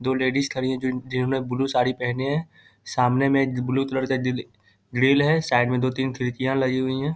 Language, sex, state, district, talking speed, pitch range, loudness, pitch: Hindi, male, Bihar, Muzaffarpur, 225 wpm, 125-135 Hz, -23 LUFS, 130 Hz